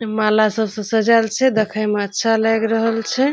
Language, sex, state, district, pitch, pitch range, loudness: Maithili, female, Bihar, Saharsa, 220 Hz, 215-225 Hz, -17 LUFS